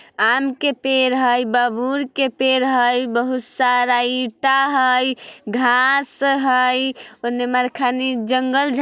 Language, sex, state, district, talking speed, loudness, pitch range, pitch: Bajjika, female, Bihar, Vaishali, 135 wpm, -18 LUFS, 245-265 Hz, 255 Hz